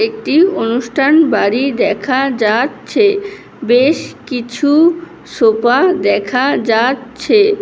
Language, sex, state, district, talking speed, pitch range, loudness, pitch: Bengali, female, West Bengal, Malda, 85 wpm, 235-340 Hz, -13 LUFS, 270 Hz